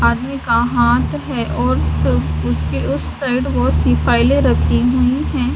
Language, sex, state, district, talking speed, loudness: Hindi, female, Haryana, Charkhi Dadri, 150 wpm, -16 LUFS